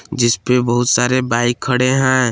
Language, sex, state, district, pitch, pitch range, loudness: Hindi, male, Jharkhand, Palamu, 125 Hz, 120-130 Hz, -15 LUFS